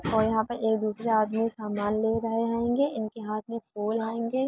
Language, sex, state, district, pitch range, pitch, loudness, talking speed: Hindi, female, Uttar Pradesh, Varanasi, 215-230 Hz, 225 Hz, -28 LUFS, 185 wpm